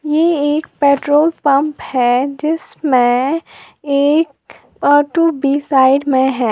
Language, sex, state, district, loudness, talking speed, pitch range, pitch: Hindi, female, Uttar Pradesh, Lalitpur, -14 LUFS, 110 wpm, 265-305 Hz, 285 Hz